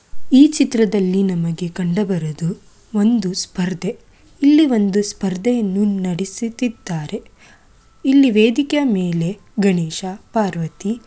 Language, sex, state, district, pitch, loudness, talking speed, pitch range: Kannada, female, Karnataka, Mysore, 205 Hz, -18 LUFS, 90 wpm, 180-230 Hz